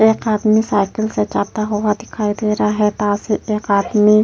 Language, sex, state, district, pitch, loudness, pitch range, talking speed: Hindi, female, Uttar Pradesh, Jyotiba Phule Nagar, 210 Hz, -17 LUFS, 210-215 Hz, 210 wpm